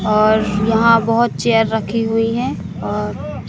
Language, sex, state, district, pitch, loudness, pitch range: Hindi, female, Madhya Pradesh, Katni, 220 Hz, -16 LUFS, 205-230 Hz